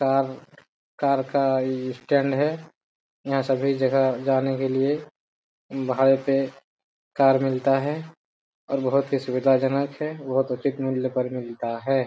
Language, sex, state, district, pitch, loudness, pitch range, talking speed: Hindi, male, Jharkhand, Jamtara, 135 Hz, -24 LUFS, 130-140 Hz, 135 wpm